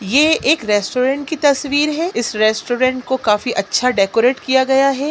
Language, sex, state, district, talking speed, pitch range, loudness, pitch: Hindi, female, Bihar, Sitamarhi, 175 wpm, 225-285 Hz, -16 LUFS, 255 Hz